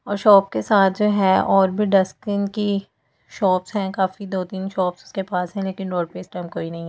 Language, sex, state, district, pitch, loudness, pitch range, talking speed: Hindi, female, Delhi, New Delhi, 190 Hz, -21 LUFS, 180-200 Hz, 235 wpm